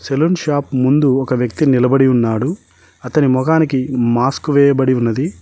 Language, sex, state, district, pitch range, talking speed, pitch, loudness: Telugu, male, Telangana, Mahabubabad, 125-145 Hz, 135 wpm, 130 Hz, -15 LUFS